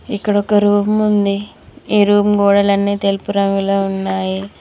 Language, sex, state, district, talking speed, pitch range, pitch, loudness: Telugu, female, Telangana, Mahabubabad, 130 wpm, 195-205 Hz, 200 Hz, -15 LUFS